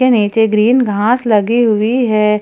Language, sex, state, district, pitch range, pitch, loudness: Hindi, female, Jharkhand, Ranchi, 210-240 Hz, 220 Hz, -12 LUFS